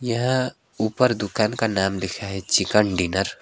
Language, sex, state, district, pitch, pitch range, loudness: Hindi, male, West Bengal, Alipurduar, 105 Hz, 95-120 Hz, -22 LUFS